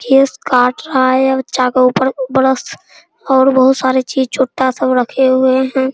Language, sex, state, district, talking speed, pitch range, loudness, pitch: Hindi, male, Bihar, Araria, 180 wpm, 255-265 Hz, -13 LUFS, 260 Hz